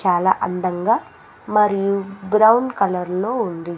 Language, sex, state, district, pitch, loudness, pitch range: Telugu, female, Andhra Pradesh, Sri Satya Sai, 195 Hz, -19 LUFS, 180-210 Hz